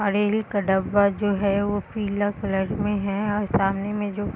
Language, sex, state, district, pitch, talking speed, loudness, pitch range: Hindi, female, Bihar, Muzaffarpur, 205 Hz, 220 wpm, -24 LUFS, 200-205 Hz